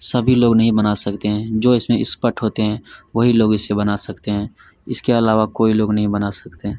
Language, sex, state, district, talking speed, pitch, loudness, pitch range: Hindi, male, Chhattisgarh, Kabirdham, 220 wpm, 110 Hz, -17 LUFS, 105-115 Hz